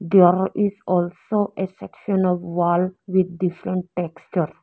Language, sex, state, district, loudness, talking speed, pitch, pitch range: English, female, Arunachal Pradesh, Lower Dibang Valley, -22 LUFS, 130 wpm, 185 Hz, 175-190 Hz